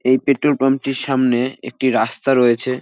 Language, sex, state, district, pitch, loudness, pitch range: Bengali, male, West Bengal, North 24 Parganas, 130 Hz, -17 LUFS, 125-135 Hz